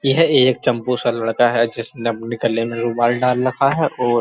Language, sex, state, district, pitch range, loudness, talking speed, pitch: Hindi, male, Uttar Pradesh, Muzaffarnagar, 115-125 Hz, -18 LUFS, 230 wpm, 120 Hz